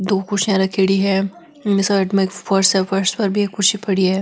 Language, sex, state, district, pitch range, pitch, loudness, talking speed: Marwari, female, Rajasthan, Nagaur, 190-205 Hz, 195 Hz, -17 LUFS, 240 wpm